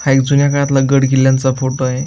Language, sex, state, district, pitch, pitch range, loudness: Marathi, male, Maharashtra, Aurangabad, 135 Hz, 130-140 Hz, -13 LUFS